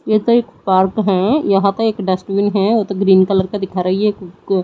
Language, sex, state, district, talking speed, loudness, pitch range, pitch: Hindi, female, Odisha, Nuapada, 220 wpm, -15 LUFS, 190-210 Hz, 195 Hz